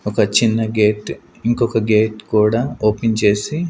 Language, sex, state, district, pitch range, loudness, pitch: Telugu, male, Andhra Pradesh, Sri Satya Sai, 105-115 Hz, -17 LUFS, 110 Hz